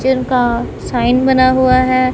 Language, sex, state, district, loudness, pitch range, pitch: Hindi, female, Punjab, Kapurthala, -13 LUFS, 250-260 Hz, 255 Hz